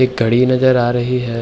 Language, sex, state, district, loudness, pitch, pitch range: Hindi, male, Uttar Pradesh, Hamirpur, -14 LUFS, 125 Hz, 120-130 Hz